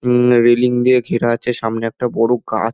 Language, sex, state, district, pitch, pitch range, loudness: Bengali, male, West Bengal, Dakshin Dinajpur, 120 Hz, 115-125 Hz, -15 LUFS